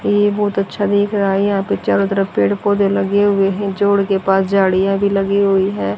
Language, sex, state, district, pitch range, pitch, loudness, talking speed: Hindi, female, Haryana, Jhajjar, 195-205 Hz, 200 Hz, -16 LUFS, 230 wpm